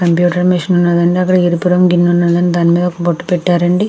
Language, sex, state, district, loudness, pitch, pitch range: Telugu, female, Andhra Pradesh, Krishna, -12 LUFS, 175 Hz, 175-180 Hz